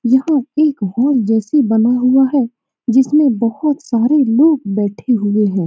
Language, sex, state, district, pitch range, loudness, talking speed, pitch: Hindi, female, Bihar, Saran, 225-280 Hz, -14 LUFS, 135 wpm, 250 Hz